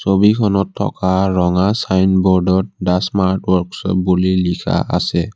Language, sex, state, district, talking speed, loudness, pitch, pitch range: Assamese, male, Assam, Kamrup Metropolitan, 110 wpm, -16 LUFS, 95 Hz, 90-95 Hz